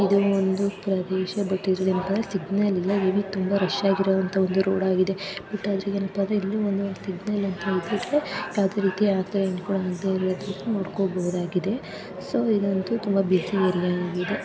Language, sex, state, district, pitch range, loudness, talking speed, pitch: Kannada, female, Karnataka, Chamarajanagar, 190-200 Hz, -25 LUFS, 125 wpm, 195 Hz